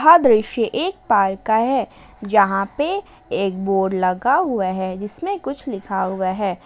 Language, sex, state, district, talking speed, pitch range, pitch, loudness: Hindi, female, Jharkhand, Ranchi, 160 wpm, 190-265 Hz, 205 Hz, -19 LUFS